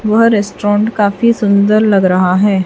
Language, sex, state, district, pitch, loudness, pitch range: Hindi, female, Chhattisgarh, Raipur, 205 Hz, -11 LUFS, 200-215 Hz